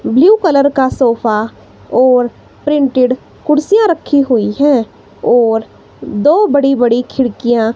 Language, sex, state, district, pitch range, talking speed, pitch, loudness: Hindi, female, Himachal Pradesh, Shimla, 235-285 Hz, 115 wpm, 260 Hz, -12 LUFS